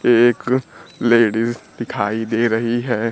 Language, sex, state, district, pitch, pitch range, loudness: Hindi, male, Bihar, Kaimur, 115 Hz, 110-120 Hz, -18 LUFS